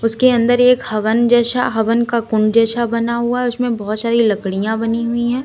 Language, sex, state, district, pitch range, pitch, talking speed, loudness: Hindi, female, Uttar Pradesh, Lalitpur, 225-240 Hz, 235 Hz, 210 wpm, -16 LUFS